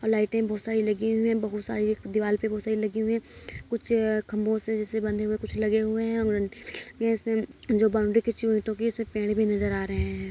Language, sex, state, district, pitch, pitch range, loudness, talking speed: Hindi, female, Uttar Pradesh, Etah, 220 Hz, 215-225 Hz, -27 LUFS, 235 wpm